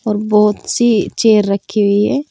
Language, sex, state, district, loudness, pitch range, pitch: Hindi, female, Uttar Pradesh, Saharanpur, -14 LUFS, 205-225 Hz, 210 Hz